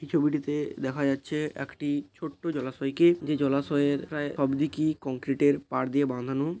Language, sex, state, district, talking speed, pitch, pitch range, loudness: Bengali, male, West Bengal, Paschim Medinipur, 155 wpm, 145 Hz, 135-150 Hz, -28 LUFS